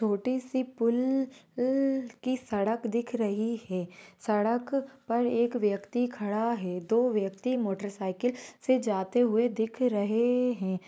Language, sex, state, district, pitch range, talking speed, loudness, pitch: Hindi, female, Bihar, Jahanabad, 205-250 Hz, 140 wpm, -29 LUFS, 235 Hz